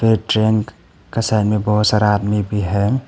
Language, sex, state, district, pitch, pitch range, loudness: Hindi, male, Arunachal Pradesh, Papum Pare, 105 Hz, 105-110 Hz, -17 LUFS